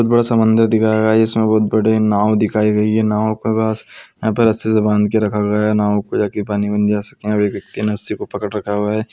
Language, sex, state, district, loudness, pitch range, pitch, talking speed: Hindi, male, Bihar, Araria, -16 LUFS, 105-110 Hz, 105 Hz, 285 wpm